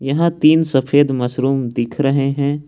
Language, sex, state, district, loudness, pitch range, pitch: Hindi, male, Jharkhand, Ranchi, -16 LUFS, 130-145 Hz, 140 Hz